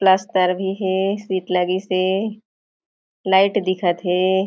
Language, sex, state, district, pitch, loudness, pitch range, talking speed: Chhattisgarhi, female, Chhattisgarh, Jashpur, 190 Hz, -20 LUFS, 185-195 Hz, 120 wpm